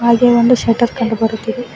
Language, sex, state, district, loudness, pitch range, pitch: Kannada, female, Karnataka, Bangalore, -14 LUFS, 230-245 Hz, 235 Hz